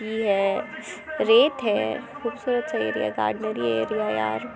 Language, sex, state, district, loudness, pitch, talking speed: Hindi, female, Bihar, Muzaffarpur, -24 LUFS, 195 Hz, 145 wpm